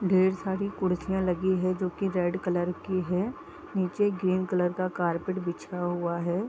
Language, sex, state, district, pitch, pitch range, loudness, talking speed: Hindi, female, Bihar, East Champaran, 185 Hz, 180-190 Hz, -29 LUFS, 185 wpm